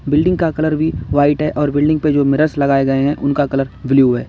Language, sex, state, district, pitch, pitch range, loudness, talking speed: Hindi, male, Uttar Pradesh, Lalitpur, 145 Hz, 140-155 Hz, -15 LUFS, 250 wpm